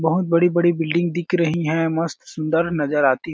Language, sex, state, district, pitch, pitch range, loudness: Hindi, male, Chhattisgarh, Balrampur, 165 Hz, 160-170 Hz, -20 LUFS